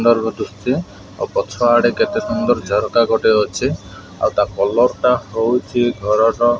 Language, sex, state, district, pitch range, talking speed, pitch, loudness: Odia, male, Odisha, Malkangiri, 110-120 Hz, 135 wpm, 120 Hz, -17 LUFS